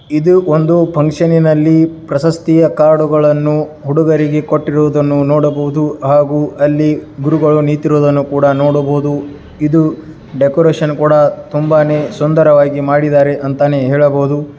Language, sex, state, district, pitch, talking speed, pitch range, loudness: Kannada, male, Karnataka, Dharwad, 150 Hz, 100 wpm, 145-155 Hz, -11 LUFS